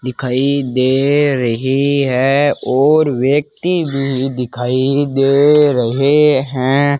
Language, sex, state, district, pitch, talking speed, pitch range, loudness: Hindi, male, Rajasthan, Bikaner, 135 Hz, 95 wpm, 130-145 Hz, -14 LUFS